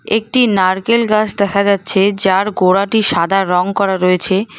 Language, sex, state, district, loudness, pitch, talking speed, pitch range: Bengali, female, West Bengal, Cooch Behar, -13 LUFS, 195 Hz, 145 wpm, 190-210 Hz